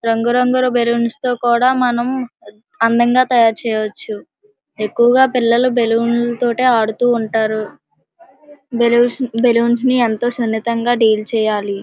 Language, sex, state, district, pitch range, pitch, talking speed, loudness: Telugu, female, Andhra Pradesh, Srikakulam, 225-250 Hz, 235 Hz, 100 wpm, -15 LUFS